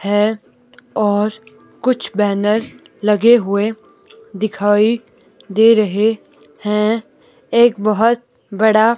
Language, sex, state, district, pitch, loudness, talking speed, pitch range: Hindi, female, Himachal Pradesh, Shimla, 220 Hz, -16 LUFS, 85 wpm, 210-235 Hz